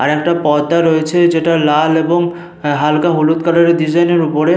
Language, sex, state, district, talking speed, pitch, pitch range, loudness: Bengali, male, Jharkhand, Sahebganj, 185 wpm, 165 Hz, 155-170 Hz, -13 LUFS